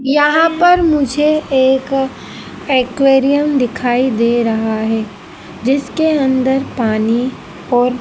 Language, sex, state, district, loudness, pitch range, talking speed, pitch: Hindi, female, Madhya Pradesh, Dhar, -14 LUFS, 245-285 Hz, 95 wpm, 265 Hz